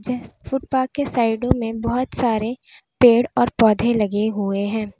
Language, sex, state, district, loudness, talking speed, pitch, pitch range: Hindi, female, Uttar Pradesh, Lalitpur, -20 LUFS, 155 wpm, 230 Hz, 220-250 Hz